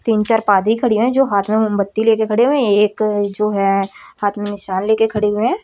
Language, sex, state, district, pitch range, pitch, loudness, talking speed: Hindi, female, Haryana, Rohtak, 205-225 Hz, 210 Hz, -16 LUFS, 255 wpm